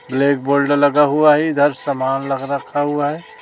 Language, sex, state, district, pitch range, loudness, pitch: Hindi, male, Chhattisgarh, Raipur, 140-145 Hz, -16 LUFS, 145 Hz